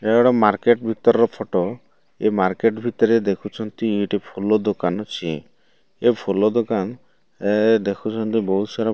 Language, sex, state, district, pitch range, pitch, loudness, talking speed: Odia, male, Odisha, Malkangiri, 100-115 Hz, 110 Hz, -20 LUFS, 140 wpm